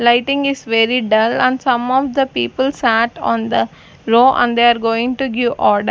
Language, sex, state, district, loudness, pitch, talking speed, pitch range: English, female, Punjab, Fazilka, -15 LUFS, 240 Hz, 205 wpm, 225-260 Hz